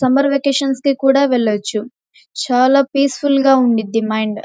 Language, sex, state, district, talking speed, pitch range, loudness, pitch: Telugu, female, Andhra Pradesh, Krishna, 160 wpm, 225-275 Hz, -15 LUFS, 265 Hz